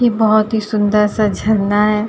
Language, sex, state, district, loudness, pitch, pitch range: Hindi, female, Uttar Pradesh, Jalaun, -15 LUFS, 215 Hz, 210-220 Hz